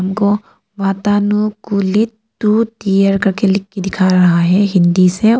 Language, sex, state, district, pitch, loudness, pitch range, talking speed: Hindi, female, Arunachal Pradesh, Papum Pare, 200 Hz, -14 LUFS, 190-210 Hz, 120 wpm